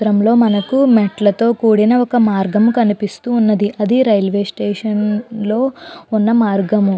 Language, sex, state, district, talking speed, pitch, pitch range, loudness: Telugu, female, Andhra Pradesh, Chittoor, 120 wpm, 215 Hz, 205-230 Hz, -14 LUFS